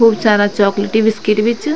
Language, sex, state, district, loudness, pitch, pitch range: Garhwali, female, Uttarakhand, Tehri Garhwal, -14 LUFS, 215 Hz, 205-225 Hz